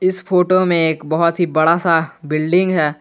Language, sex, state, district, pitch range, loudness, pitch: Hindi, male, Jharkhand, Garhwa, 160-180 Hz, -16 LUFS, 170 Hz